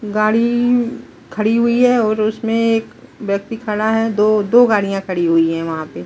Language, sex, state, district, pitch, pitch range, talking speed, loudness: Hindi, female, Chhattisgarh, Balrampur, 215 Hz, 200-230 Hz, 180 wpm, -16 LUFS